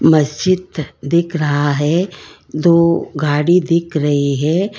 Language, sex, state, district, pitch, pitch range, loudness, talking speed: Hindi, female, Karnataka, Bangalore, 160 Hz, 145-170 Hz, -15 LUFS, 115 wpm